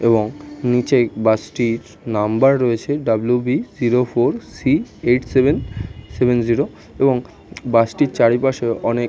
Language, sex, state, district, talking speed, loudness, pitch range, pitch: Bengali, male, West Bengal, North 24 Parganas, 150 wpm, -18 LUFS, 115-130 Hz, 120 Hz